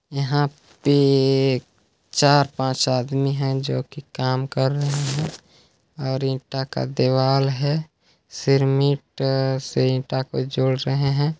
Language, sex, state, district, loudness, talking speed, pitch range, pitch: Hindi, male, Chhattisgarh, Balrampur, -21 LUFS, 120 wpm, 130-140 Hz, 135 Hz